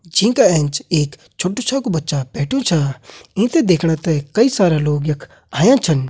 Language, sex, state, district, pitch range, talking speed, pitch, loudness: Kumaoni, male, Uttarakhand, Tehri Garhwal, 150-225 Hz, 165 wpm, 165 Hz, -17 LUFS